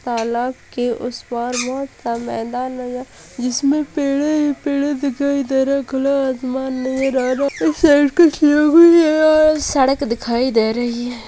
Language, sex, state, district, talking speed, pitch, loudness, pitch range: Hindi, female, Bihar, Purnia, 145 wpm, 265 Hz, -17 LUFS, 245-290 Hz